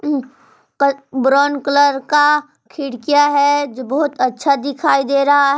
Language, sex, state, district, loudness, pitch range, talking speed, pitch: Hindi, female, Jharkhand, Palamu, -15 LUFS, 275-290 Hz, 130 wpm, 280 Hz